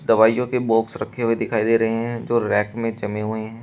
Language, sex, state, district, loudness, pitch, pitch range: Hindi, male, Uttar Pradesh, Shamli, -21 LUFS, 115 Hz, 110-115 Hz